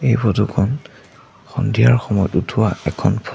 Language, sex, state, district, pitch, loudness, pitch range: Assamese, male, Assam, Sonitpur, 115 Hz, -18 LUFS, 105-125 Hz